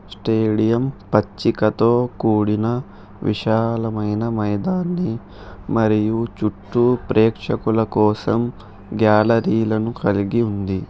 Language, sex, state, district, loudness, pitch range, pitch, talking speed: Telugu, male, Telangana, Hyderabad, -19 LUFS, 105-115 Hz, 110 Hz, 65 wpm